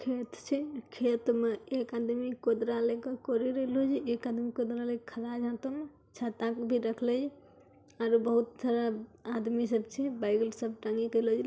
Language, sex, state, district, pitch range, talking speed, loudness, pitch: Angika, female, Bihar, Begusarai, 230-250 Hz, 180 wpm, -33 LUFS, 235 Hz